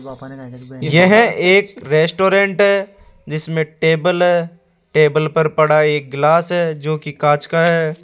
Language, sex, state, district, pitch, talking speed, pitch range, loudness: Hindi, male, Rajasthan, Jaipur, 160 Hz, 135 wpm, 150-175 Hz, -15 LUFS